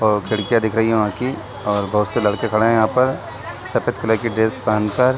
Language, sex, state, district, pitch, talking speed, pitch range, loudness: Hindi, male, Chhattisgarh, Raigarh, 110 Hz, 255 wpm, 105-115 Hz, -19 LUFS